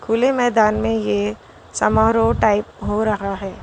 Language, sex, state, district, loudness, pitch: Hindi, female, Gujarat, Valsad, -18 LUFS, 205 Hz